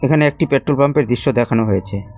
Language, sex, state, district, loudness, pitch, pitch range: Bengali, male, West Bengal, Cooch Behar, -16 LUFS, 140 Hz, 110-145 Hz